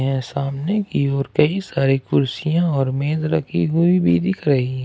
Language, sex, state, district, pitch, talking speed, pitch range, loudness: Hindi, male, Jharkhand, Ranchi, 140 Hz, 185 wpm, 135-170 Hz, -19 LUFS